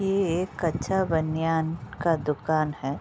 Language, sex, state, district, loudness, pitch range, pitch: Hindi, female, Uttar Pradesh, Budaun, -26 LUFS, 150-175 Hz, 160 Hz